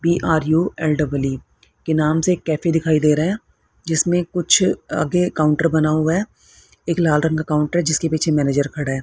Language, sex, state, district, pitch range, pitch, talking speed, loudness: Hindi, female, Haryana, Rohtak, 150-170 Hz, 160 Hz, 175 wpm, -19 LUFS